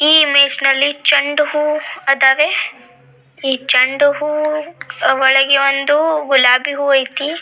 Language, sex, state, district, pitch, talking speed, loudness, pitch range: Kannada, female, Karnataka, Belgaum, 280 Hz, 115 wpm, -13 LUFS, 270-300 Hz